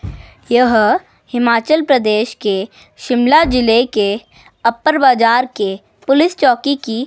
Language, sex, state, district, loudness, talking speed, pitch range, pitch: Hindi, male, Himachal Pradesh, Shimla, -14 LUFS, 110 wpm, 215-270 Hz, 240 Hz